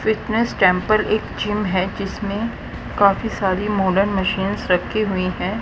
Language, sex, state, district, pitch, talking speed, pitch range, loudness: Hindi, female, Haryana, Rohtak, 200 Hz, 140 wpm, 190-215 Hz, -20 LUFS